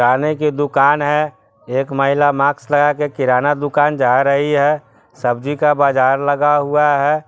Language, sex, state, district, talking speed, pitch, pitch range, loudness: Hindi, male, Bihar, Sitamarhi, 155 wpm, 145 Hz, 135-150 Hz, -15 LUFS